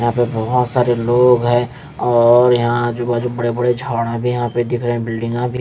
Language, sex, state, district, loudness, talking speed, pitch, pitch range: Hindi, male, Bihar, West Champaran, -16 LUFS, 225 wpm, 120 Hz, 120-125 Hz